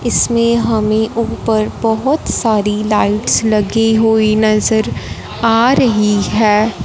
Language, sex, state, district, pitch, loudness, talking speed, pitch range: Hindi, female, Punjab, Fazilka, 220 Hz, -13 LUFS, 105 wpm, 215-230 Hz